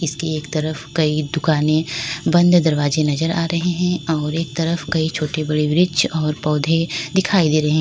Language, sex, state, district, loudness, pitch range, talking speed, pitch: Hindi, female, Uttar Pradesh, Lalitpur, -19 LUFS, 150-165 Hz, 185 wpm, 160 Hz